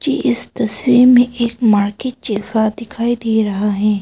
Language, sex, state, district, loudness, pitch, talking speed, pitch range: Hindi, female, Arunachal Pradesh, Papum Pare, -15 LUFS, 230 Hz, 150 wpm, 210-245 Hz